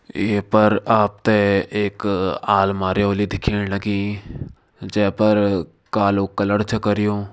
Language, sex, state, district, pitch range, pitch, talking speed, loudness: Kumaoni, male, Uttarakhand, Tehri Garhwal, 100-105 Hz, 100 Hz, 115 wpm, -19 LUFS